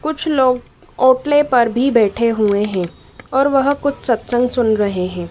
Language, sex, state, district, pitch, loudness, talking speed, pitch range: Hindi, female, Madhya Pradesh, Dhar, 245 Hz, -16 LUFS, 170 wpm, 215-270 Hz